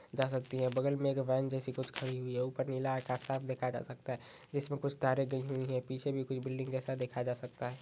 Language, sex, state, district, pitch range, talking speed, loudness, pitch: Magahi, male, Bihar, Gaya, 125-135 Hz, 270 wpm, -37 LUFS, 130 Hz